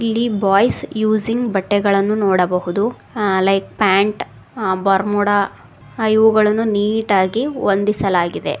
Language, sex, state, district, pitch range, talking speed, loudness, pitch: Kannada, female, Karnataka, Koppal, 195-220 Hz, 90 wpm, -17 LUFS, 205 Hz